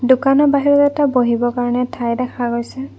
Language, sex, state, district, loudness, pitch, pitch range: Assamese, female, Assam, Kamrup Metropolitan, -16 LUFS, 250 Hz, 240-280 Hz